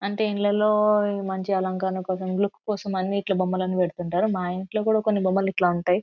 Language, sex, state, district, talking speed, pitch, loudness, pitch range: Telugu, female, Andhra Pradesh, Anantapur, 170 wpm, 190 Hz, -24 LUFS, 185-205 Hz